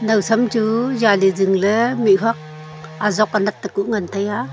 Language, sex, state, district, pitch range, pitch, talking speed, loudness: Wancho, female, Arunachal Pradesh, Longding, 195-225 Hz, 210 Hz, 135 wpm, -18 LUFS